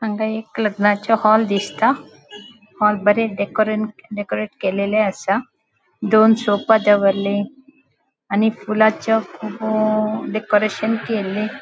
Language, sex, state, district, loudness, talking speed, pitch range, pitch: Konkani, female, Goa, North and South Goa, -18 LUFS, 100 wpm, 205-220 Hz, 215 Hz